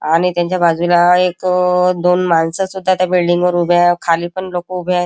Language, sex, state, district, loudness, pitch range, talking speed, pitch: Marathi, male, Maharashtra, Chandrapur, -14 LUFS, 175-180 Hz, 200 wpm, 180 Hz